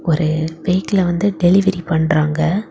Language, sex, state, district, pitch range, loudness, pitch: Tamil, female, Tamil Nadu, Kanyakumari, 160-190 Hz, -16 LUFS, 175 Hz